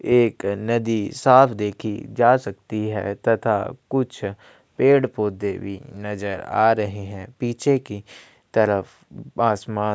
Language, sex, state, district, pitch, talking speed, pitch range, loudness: Hindi, male, Chhattisgarh, Kabirdham, 110 Hz, 120 wpm, 100-125 Hz, -21 LUFS